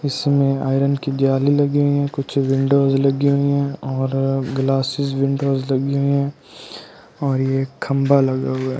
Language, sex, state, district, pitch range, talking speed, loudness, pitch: Hindi, male, Delhi, New Delhi, 135-140 Hz, 165 wpm, -19 LUFS, 135 Hz